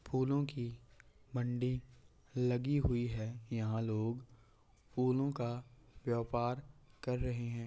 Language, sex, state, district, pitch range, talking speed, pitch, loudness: Hindi, male, Bihar, Samastipur, 115-125 Hz, 110 wpm, 120 Hz, -38 LUFS